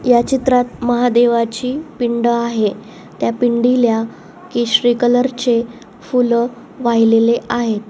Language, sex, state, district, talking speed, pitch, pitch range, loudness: Marathi, female, Maharashtra, Solapur, 100 wpm, 240 Hz, 235-245 Hz, -16 LUFS